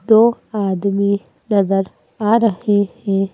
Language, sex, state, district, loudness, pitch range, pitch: Hindi, female, Madhya Pradesh, Bhopal, -17 LUFS, 195-220 Hz, 200 Hz